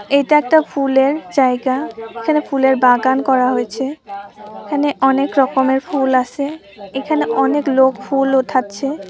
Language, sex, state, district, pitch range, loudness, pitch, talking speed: Bengali, female, West Bengal, Purulia, 255-285 Hz, -16 LUFS, 270 Hz, 120 wpm